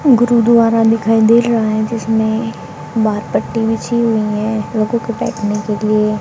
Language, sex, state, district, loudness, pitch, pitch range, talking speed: Hindi, female, Haryana, Jhajjar, -15 LUFS, 225 Hz, 215-230 Hz, 155 wpm